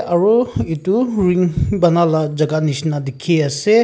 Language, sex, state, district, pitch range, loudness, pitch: Nagamese, male, Nagaland, Kohima, 155-200 Hz, -16 LUFS, 170 Hz